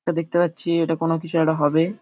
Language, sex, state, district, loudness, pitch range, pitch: Bengali, male, West Bengal, Paschim Medinipur, -21 LUFS, 160-170 Hz, 165 Hz